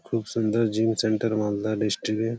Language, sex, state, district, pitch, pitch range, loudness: Bengali, male, West Bengal, Malda, 110 Hz, 110-115 Hz, -25 LUFS